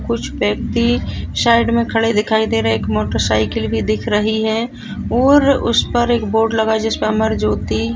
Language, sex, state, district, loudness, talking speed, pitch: Hindi, female, Chhattisgarh, Sukma, -16 LUFS, 180 wpm, 220 Hz